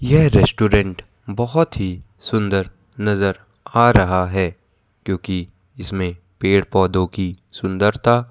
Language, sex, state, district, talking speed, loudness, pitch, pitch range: Hindi, male, Madhya Pradesh, Bhopal, 110 wpm, -19 LUFS, 100 Hz, 95-110 Hz